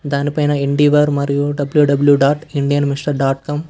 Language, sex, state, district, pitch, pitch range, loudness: Telugu, male, Karnataka, Bangalore, 145 Hz, 140-145 Hz, -15 LUFS